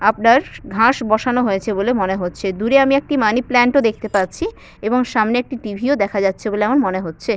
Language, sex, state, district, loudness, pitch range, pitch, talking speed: Bengali, female, West Bengal, Purulia, -17 LUFS, 200-255 Hz, 230 Hz, 205 wpm